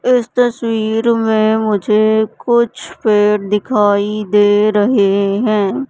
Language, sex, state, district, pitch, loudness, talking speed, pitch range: Hindi, female, Madhya Pradesh, Katni, 215 Hz, -14 LUFS, 100 wpm, 210-230 Hz